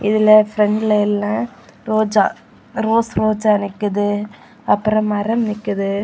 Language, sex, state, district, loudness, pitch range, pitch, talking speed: Tamil, female, Tamil Nadu, Kanyakumari, -17 LUFS, 205-215 Hz, 210 Hz, 100 wpm